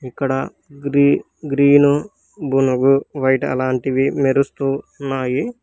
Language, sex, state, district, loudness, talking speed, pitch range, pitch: Telugu, male, Telangana, Hyderabad, -18 LUFS, 85 wpm, 135-140 Hz, 135 Hz